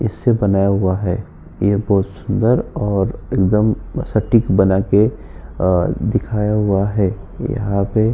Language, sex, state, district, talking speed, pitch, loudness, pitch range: Hindi, male, Uttar Pradesh, Jyotiba Phule Nagar, 135 wpm, 100 Hz, -17 LUFS, 95-110 Hz